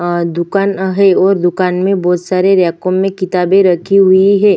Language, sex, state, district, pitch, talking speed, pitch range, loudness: Hindi, female, Chhattisgarh, Sukma, 185 Hz, 185 wpm, 180-195 Hz, -12 LUFS